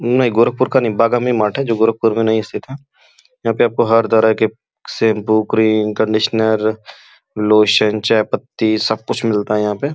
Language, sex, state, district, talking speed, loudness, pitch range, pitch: Hindi, male, Uttar Pradesh, Gorakhpur, 185 wpm, -15 LUFS, 110-115 Hz, 110 Hz